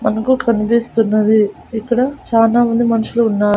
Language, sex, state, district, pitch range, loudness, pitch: Telugu, female, Andhra Pradesh, Annamaya, 220-235 Hz, -15 LUFS, 230 Hz